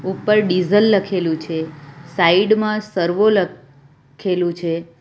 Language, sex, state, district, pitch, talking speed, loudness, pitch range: Gujarati, female, Gujarat, Valsad, 175 Hz, 120 wpm, -18 LUFS, 160-205 Hz